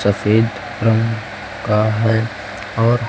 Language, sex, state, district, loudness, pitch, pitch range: Hindi, male, Chhattisgarh, Raipur, -18 LUFS, 110 Hz, 105-115 Hz